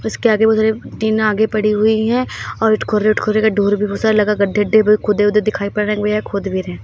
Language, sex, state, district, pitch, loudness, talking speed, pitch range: Hindi, female, Uttar Pradesh, Hamirpur, 215 Hz, -16 LUFS, 270 wpm, 210-220 Hz